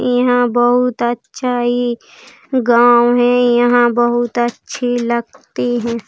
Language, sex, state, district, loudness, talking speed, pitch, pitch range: Hindi, female, Uttar Pradesh, Jalaun, -14 LUFS, 110 wpm, 240 Hz, 240-245 Hz